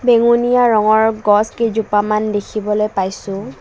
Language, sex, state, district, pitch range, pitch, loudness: Assamese, female, Assam, Kamrup Metropolitan, 210-230 Hz, 215 Hz, -15 LUFS